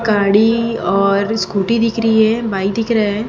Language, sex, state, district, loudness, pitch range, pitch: Hindi, female, Chhattisgarh, Raipur, -15 LUFS, 200-230 Hz, 220 Hz